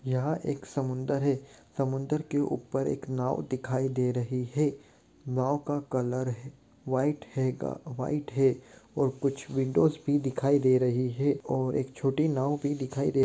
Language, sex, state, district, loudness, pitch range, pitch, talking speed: Hindi, male, Bihar, Gopalganj, -29 LUFS, 130-145 Hz, 135 Hz, 165 wpm